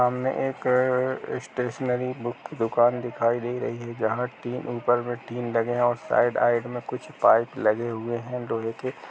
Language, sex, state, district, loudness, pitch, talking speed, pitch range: Hindi, male, Bihar, Gaya, -26 LUFS, 120 Hz, 180 wpm, 120-125 Hz